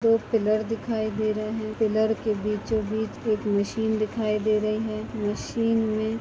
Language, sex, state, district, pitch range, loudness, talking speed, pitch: Hindi, female, Chhattisgarh, Bastar, 215-220 Hz, -26 LUFS, 175 wpm, 215 Hz